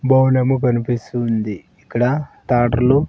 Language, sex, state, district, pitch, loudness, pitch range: Telugu, male, Andhra Pradesh, Sri Satya Sai, 125 Hz, -18 LUFS, 120-130 Hz